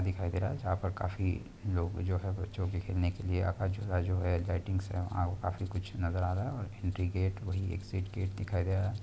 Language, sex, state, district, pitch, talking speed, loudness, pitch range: Hindi, male, Bihar, Begusarai, 95 Hz, 240 wpm, -35 LUFS, 90-95 Hz